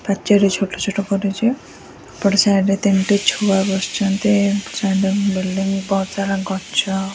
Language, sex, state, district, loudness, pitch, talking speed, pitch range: Odia, female, Odisha, Nuapada, -18 LUFS, 195 Hz, 110 wpm, 195-200 Hz